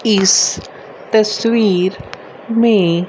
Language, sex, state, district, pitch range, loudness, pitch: Hindi, female, Haryana, Rohtak, 185-225 Hz, -14 LUFS, 210 Hz